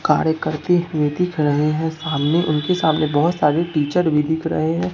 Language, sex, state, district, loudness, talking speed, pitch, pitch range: Hindi, male, Bihar, Katihar, -19 LUFS, 195 wpm, 160 Hz, 150-170 Hz